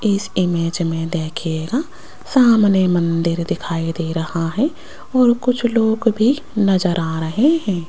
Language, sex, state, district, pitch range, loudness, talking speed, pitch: Hindi, female, Rajasthan, Jaipur, 165-240 Hz, -18 LUFS, 135 wpm, 190 Hz